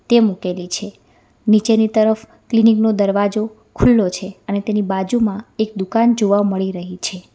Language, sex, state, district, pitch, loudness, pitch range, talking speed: Gujarati, female, Gujarat, Valsad, 205 Hz, -17 LUFS, 190-220 Hz, 155 wpm